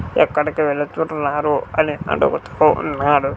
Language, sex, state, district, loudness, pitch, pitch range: Telugu, male, Andhra Pradesh, Sri Satya Sai, -18 LUFS, 150 Hz, 145-155 Hz